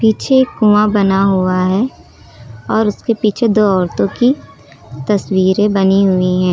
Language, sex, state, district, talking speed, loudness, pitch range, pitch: Hindi, female, Uttar Pradesh, Lucknow, 145 wpm, -13 LUFS, 185-215 Hz, 195 Hz